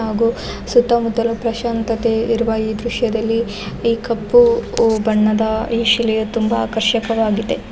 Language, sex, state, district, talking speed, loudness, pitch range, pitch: Kannada, female, Karnataka, Bellary, 100 wpm, -17 LUFS, 220-230 Hz, 230 Hz